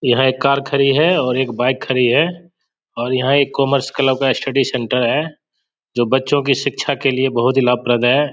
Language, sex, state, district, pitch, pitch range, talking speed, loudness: Hindi, male, Bihar, Samastipur, 135 Hz, 125-140 Hz, 210 wpm, -16 LUFS